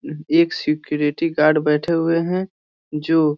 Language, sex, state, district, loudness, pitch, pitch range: Hindi, male, Bihar, East Champaran, -19 LUFS, 165 Hz, 150-180 Hz